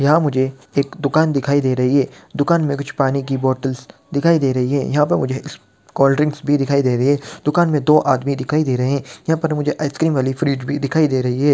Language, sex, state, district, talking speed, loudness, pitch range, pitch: Hindi, male, Bihar, Darbhanga, 240 wpm, -18 LUFS, 135-150 Hz, 140 Hz